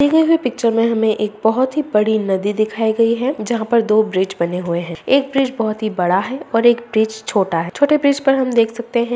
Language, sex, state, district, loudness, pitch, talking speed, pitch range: Hindi, female, Bihar, Madhepura, -17 LUFS, 225 Hz, 195 wpm, 210-260 Hz